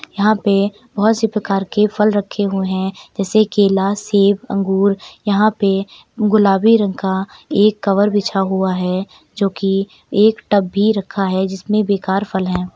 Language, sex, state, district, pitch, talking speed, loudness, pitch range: Hindi, female, Uttar Pradesh, Varanasi, 200 Hz, 165 wpm, -16 LUFS, 195-210 Hz